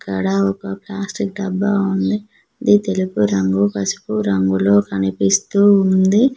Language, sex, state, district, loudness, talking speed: Telugu, female, Telangana, Mahabubabad, -17 LUFS, 115 wpm